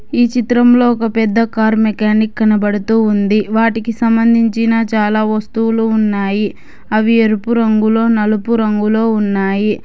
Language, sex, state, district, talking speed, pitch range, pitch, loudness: Telugu, female, Telangana, Hyderabad, 120 wpm, 215-230 Hz, 220 Hz, -13 LUFS